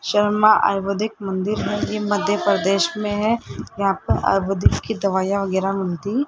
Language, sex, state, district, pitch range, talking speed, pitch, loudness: Hindi, male, Rajasthan, Jaipur, 195-210 Hz, 160 wpm, 200 Hz, -20 LUFS